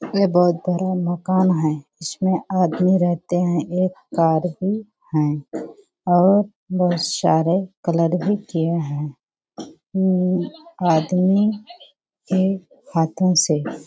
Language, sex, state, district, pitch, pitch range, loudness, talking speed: Hindi, female, Bihar, Kishanganj, 180 Hz, 165-190 Hz, -20 LUFS, 115 wpm